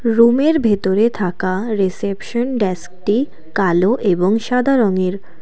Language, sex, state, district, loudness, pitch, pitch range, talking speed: Bengali, female, Assam, Kamrup Metropolitan, -17 LUFS, 205 Hz, 185-235 Hz, 100 wpm